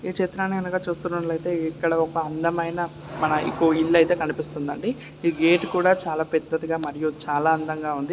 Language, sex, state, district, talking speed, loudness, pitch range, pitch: Telugu, male, Andhra Pradesh, Guntur, 140 wpm, -24 LUFS, 155-170 Hz, 165 Hz